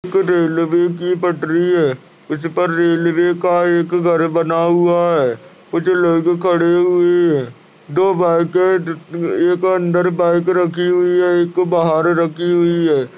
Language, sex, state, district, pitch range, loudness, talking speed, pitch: Hindi, male, Uttar Pradesh, Ghazipur, 170-180 Hz, -15 LUFS, 140 wpm, 175 Hz